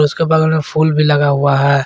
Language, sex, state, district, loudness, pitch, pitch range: Hindi, male, Jharkhand, Garhwa, -13 LUFS, 150 Hz, 140-155 Hz